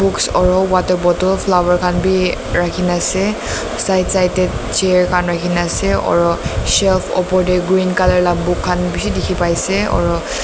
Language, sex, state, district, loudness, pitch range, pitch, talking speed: Nagamese, female, Nagaland, Dimapur, -15 LUFS, 175-185 Hz, 180 Hz, 180 wpm